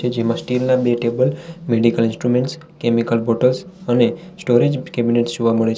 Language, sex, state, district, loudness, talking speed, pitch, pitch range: Gujarati, male, Gujarat, Valsad, -18 LUFS, 155 wpm, 120 Hz, 115-130 Hz